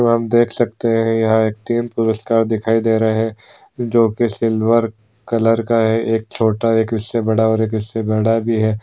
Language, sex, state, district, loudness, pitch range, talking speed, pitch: Hindi, male, Andhra Pradesh, Visakhapatnam, -17 LUFS, 110-115 Hz, 145 wpm, 115 Hz